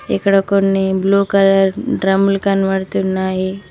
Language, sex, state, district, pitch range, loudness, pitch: Telugu, female, Telangana, Mahabubabad, 190-195 Hz, -15 LUFS, 195 Hz